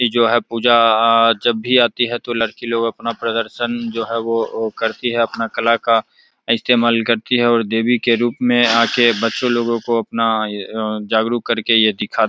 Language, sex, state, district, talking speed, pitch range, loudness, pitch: Hindi, male, Bihar, Begusarai, 185 wpm, 115-120 Hz, -16 LUFS, 115 Hz